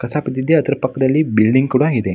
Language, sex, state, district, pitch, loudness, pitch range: Kannada, male, Karnataka, Mysore, 130 Hz, -16 LUFS, 120-150 Hz